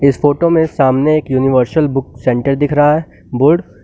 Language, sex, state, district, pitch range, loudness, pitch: Hindi, male, Uttar Pradesh, Lucknow, 130-155 Hz, -13 LUFS, 140 Hz